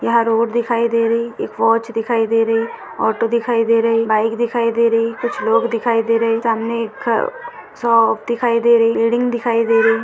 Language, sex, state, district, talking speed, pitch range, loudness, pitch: Hindi, female, Maharashtra, Sindhudurg, 195 wpm, 225-235 Hz, -17 LUFS, 230 Hz